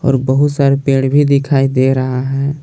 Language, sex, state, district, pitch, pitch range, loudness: Hindi, male, Jharkhand, Palamu, 135 Hz, 135-140 Hz, -13 LUFS